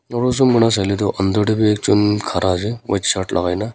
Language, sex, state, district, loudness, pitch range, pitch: Nagamese, female, Nagaland, Kohima, -17 LUFS, 95-115 Hz, 105 Hz